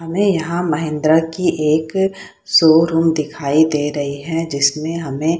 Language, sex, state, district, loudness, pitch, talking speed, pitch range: Hindi, female, Bihar, Saharsa, -16 LUFS, 160 Hz, 145 wpm, 150-165 Hz